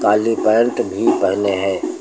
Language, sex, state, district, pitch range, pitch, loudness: Hindi, male, Uttar Pradesh, Lucknow, 100-115 Hz, 110 Hz, -17 LUFS